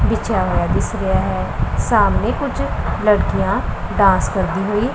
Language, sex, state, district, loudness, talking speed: Punjabi, female, Punjab, Pathankot, -18 LUFS, 145 wpm